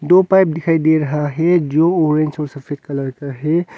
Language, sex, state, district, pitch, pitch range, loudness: Hindi, male, Arunachal Pradesh, Longding, 155 Hz, 145-165 Hz, -16 LUFS